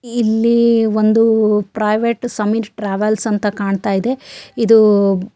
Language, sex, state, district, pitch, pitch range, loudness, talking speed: Kannada, female, Karnataka, Shimoga, 215 Hz, 210-225 Hz, -15 LUFS, 110 wpm